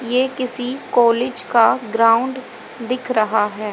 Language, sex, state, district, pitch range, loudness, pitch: Hindi, female, Haryana, Rohtak, 225-255 Hz, -18 LUFS, 240 Hz